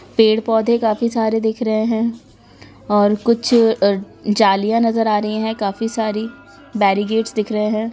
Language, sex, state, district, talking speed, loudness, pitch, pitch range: Hindi, female, Bihar, Araria, 150 wpm, -17 LUFS, 220 Hz, 210-225 Hz